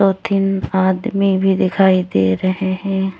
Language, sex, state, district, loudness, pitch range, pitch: Hindi, female, Jharkhand, Deoghar, -16 LUFS, 185-195 Hz, 190 Hz